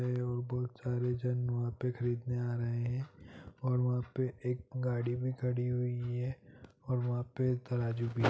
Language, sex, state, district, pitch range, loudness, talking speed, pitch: Hindi, male, Jharkhand, Jamtara, 120-125 Hz, -35 LUFS, 190 wpm, 125 Hz